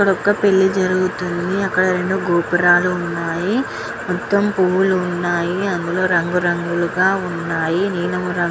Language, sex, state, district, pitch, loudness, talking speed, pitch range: Telugu, female, Andhra Pradesh, Guntur, 180 Hz, -18 LUFS, 135 wpm, 175-190 Hz